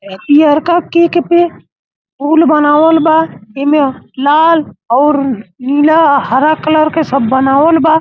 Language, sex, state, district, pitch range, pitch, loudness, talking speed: Bhojpuri, male, Uttar Pradesh, Gorakhpur, 270-320 Hz, 300 Hz, -10 LUFS, 120 wpm